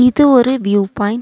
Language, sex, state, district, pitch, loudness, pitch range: Tamil, female, Tamil Nadu, Nilgiris, 245 Hz, -13 LUFS, 205-255 Hz